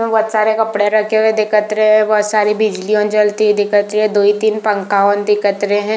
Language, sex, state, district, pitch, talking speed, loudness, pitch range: Hindi, female, Chhattisgarh, Bilaspur, 210 Hz, 250 wpm, -14 LUFS, 205-215 Hz